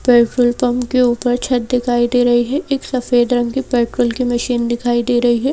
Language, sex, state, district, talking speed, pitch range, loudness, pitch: Hindi, female, Madhya Pradesh, Bhopal, 215 wpm, 240-250 Hz, -16 LUFS, 245 Hz